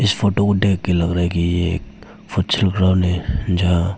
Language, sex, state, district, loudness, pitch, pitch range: Hindi, male, Arunachal Pradesh, Papum Pare, -18 LUFS, 90 Hz, 85-95 Hz